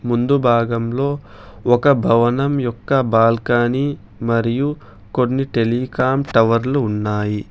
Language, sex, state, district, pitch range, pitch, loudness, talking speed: Telugu, male, Telangana, Hyderabad, 115-135 Hz, 120 Hz, -18 LUFS, 90 wpm